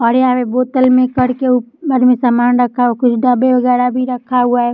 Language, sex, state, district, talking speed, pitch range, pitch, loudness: Hindi, female, Bihar, Samastipur, 200 wpm, 245-255 Hz, 250 Hz, -13 LUFS